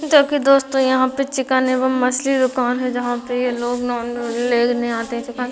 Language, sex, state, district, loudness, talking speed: Hindi, female, Chhattisgarh, Raigarh, -18 LUFS, 205 wpm